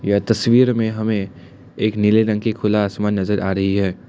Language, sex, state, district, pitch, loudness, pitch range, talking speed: Hindi, male, Assam, Kamrup Metropolitan, 105 Hz, -18 LUFS, 100-110 Hz, 205 wpm